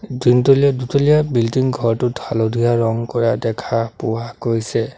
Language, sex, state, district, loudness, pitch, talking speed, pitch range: Assamese, male, Assam, Sonitpur, -17 LUFS, 120 Hz, 120 wpm, 115-125 Hz